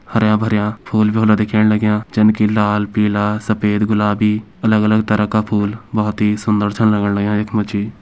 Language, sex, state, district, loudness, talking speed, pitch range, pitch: Kumaoni, male, Uttarakhand, Uttarkashi, -16 LUFS, 200 wpm, 105-110 Hz, 105 Hz